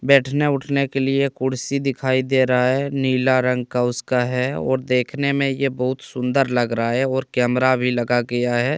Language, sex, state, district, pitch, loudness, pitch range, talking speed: Hindi, male, Jharkhand, Deoghar, 130 Hz, -20 LUFS, 125-135 Hz, 200 wpm